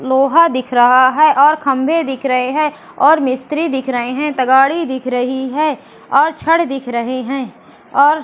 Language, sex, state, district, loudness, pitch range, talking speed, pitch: Hindi, female, Madhya Pradesh, Katni, -14 LUFS, 255-300 Hz, 180 wpm, 270 Hz